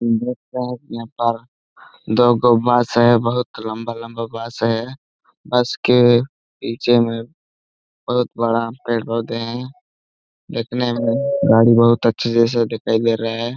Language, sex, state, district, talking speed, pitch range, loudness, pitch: Hindi, male, Jharkhand, Sahebganj, 135 wpm, 115-120 Hz, -18 LUFS, 115 Hz